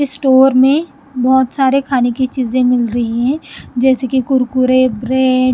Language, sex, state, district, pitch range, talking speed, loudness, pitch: Hindi, female, Punjab, Kapurthala, 255-270 Hz, 160 wpm, -13 LUFS, 260 Hz